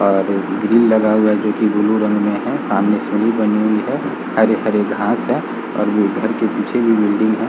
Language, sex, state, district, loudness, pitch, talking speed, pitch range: Hindi, male, Bihar, Saran, -16 LUFS, 105 Hz, 240 wpm, 105-110 Hz